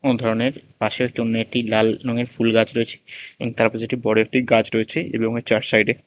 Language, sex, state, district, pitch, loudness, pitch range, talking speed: Bengali, male, Tripura, West Tripura, 115 Hz, -21 LUFS, 110-125 Hz, 215 wpm